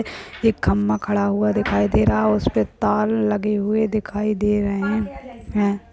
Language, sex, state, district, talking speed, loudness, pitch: Hindi, female, Uttar Pradesh, Jalaun, 160 wpm, -20 LUFS, 205 Hz